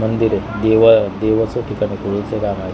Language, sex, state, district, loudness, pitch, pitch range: Marathi, male, Maharashtra, Mumbai Suburban, -16 LUFS, 110 Hz, 100-110 Hz